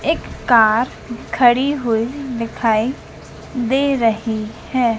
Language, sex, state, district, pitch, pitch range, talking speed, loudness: Hindi, female, Madhya Pradesh, Dhar, 235 Hz, 225-260 Hz, 95 wpm, -18 LUFS